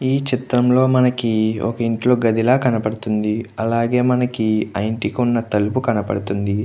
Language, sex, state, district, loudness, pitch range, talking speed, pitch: Telugu, male, Andhra Pradesh, Krishna, -18 LUFS, 110-125 Hz, 125 wpm, 115 Hz